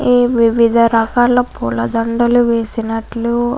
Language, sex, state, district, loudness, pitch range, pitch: Telugu, female, Andhra Pradesh, Chittoor, -14 LUFS, 230-245 Hz, 235 Hz